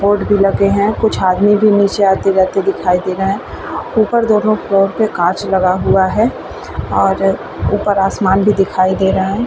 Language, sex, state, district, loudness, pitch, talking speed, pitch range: Hindi, female, Bihar, Vaishali, -14 LUFS, 195 Hz, 185 wpm, 190-205 Hz